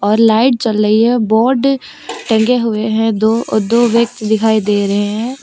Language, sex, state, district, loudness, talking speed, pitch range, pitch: Hindi, female, Uttar Pradesh, Lucknow, -13 LUFS, 175 wpm, 215-235 Hz, 220 Hz